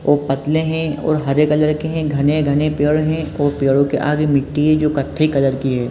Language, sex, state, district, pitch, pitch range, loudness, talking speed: Hindi, male, Chhattisgarh, Balrampur, 150 Hz, 140-155 Hz, -17 LUFS, 225 wpm